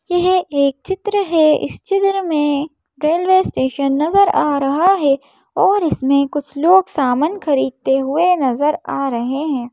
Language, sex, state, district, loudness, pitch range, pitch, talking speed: Hindi, female, Madhya Pradesh, Bhopal, -16 LUFS, 275-365 Hz, 300 Hz, 140 wpm